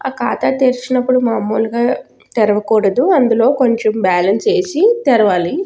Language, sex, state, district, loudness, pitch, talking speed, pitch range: Telugu, female, Telangana, Nalgonda, -14 LUFS, 240 Hz, 105 wpm, 215-260 Hz